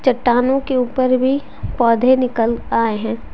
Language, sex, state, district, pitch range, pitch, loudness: Hindi, female, Jharkhand, Deoghar, 230-260 Hz, 250 Hz, -17 LUFS